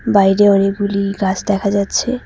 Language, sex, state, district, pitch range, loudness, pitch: Bengali, female, West Bengal, Cooch Behar, 195-200 Hz, -15 LUFS, 200 Hz